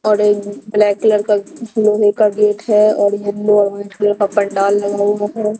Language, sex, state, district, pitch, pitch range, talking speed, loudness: Hindi, female, Bihar, Katihar, 210 Hz, 205-210 Hz, 170 wpm, -15 LUFS